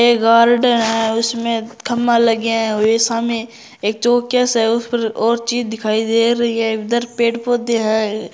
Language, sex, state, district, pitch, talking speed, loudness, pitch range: Hindi, male, Rajasthan, Churu, 230 Hz, 165 wpm, -16 LUFS, 225-235 Hz